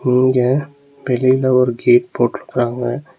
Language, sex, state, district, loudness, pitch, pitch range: Tamil, male, Tamil Nadu, Nilgiris, -16 LUFS, 125 Hz, 120-130 Hz